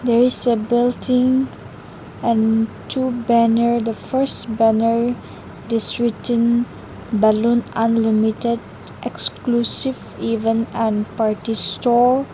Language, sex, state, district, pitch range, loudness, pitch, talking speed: English, female, Nagaland, Dimapur, 225-240 Hz, -18 LUFS, 235 Hz, 90 wpm